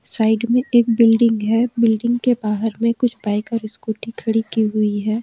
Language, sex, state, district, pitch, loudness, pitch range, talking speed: Hindi, female, Jharkhand, Ranchi, 225 Hz, -18 LUFS, 220-235 Hz, 195 wpm